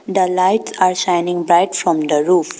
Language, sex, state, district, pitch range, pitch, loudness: English, female, Arunachal Pradesh, Papum Pare, 170-185 Hz, 180 Hz, -16 LUFS